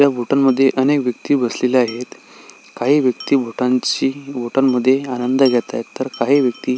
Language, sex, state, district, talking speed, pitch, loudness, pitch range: Marathi, male, Maharashtra, Sindhudurg, 170 wpm, 130 Hz, -17 LUFS, 125-135 Hz